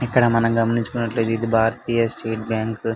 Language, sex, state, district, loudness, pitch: Telugu, male, Andhra Pradesh, Anantapur, -21 LUFS, 115 Hz